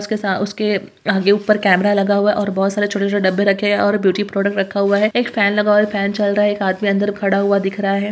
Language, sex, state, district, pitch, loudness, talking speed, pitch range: Hindi, female, Bihar, Purnia, 200 Hz, -16 LUFS, 290 wpm, 200-205 Hz